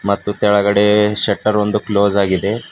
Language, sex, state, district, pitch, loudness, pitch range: Kannada, male, Karnataka, Bidar, 105 Hz, -15 LUFS, 100-105 Hz